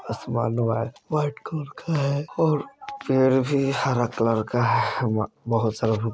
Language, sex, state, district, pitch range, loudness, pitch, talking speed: Bajjika, male, Bihar, Vaishali, 115-145 Hz, -24 LUFS, 130 Hz, 145 wpm